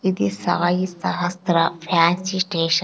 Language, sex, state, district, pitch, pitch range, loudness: Telugu, female, Andhra Pradesh, Sri Satya Sai, 175 Hz, 165-185 Hz, -20 LUFS